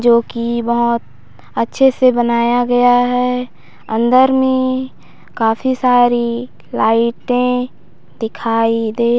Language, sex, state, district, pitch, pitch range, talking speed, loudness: Hindi, female, Chhattisgarh, Raigarh, 240 Hz, 230-250 Hz, 105 wpm, -15 LUFS